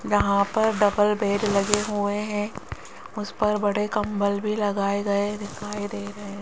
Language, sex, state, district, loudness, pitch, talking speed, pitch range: Hindi, female, Rajasthan, Jaipur, -24 LUFS, 205 Hz, 170 wpm, 200-210 Hz